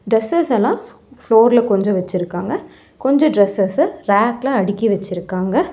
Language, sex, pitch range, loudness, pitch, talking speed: Tamil, female, 195-265 Hz, -17 LUFS, 210 Hz, 135 wpm